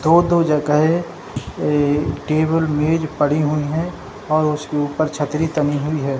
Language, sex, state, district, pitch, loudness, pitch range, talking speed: Hindi, male, Bihar, Jahanabad, 150 Hz, -19 LUFS, 150-160 Hz, 155 wpm